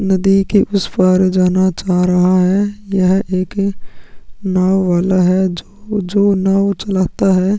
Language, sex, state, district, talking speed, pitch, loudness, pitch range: Hindi, male, Chhattisgarh, Sukma, 135 wpm, 190 Hz, -14 LUFS, 185-195 Hz